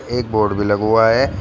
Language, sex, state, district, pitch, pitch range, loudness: Hindi, male, Uttar Pradesh, Shamli, 110 Hz, 105-115 Hz, -16 LUFS